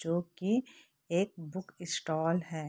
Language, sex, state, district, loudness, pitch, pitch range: Hindi, female, Bihar, Purnia, -34 LUFS, 175 Hz, 165-190 Hz